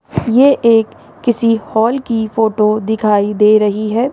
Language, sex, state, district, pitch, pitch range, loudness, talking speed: Hindi, female, Rajasthan, Jaipur, 220 Hz, 215-235 Hz, -13 LUFS, 145 wpm